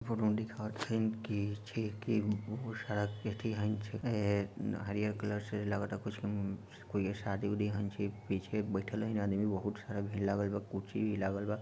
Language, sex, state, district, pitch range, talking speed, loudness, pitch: Bhojpuri, male, Bihar, Sitamarhi, 100-110 Hz, 170 wpm, -37 LUFS, 105 Hz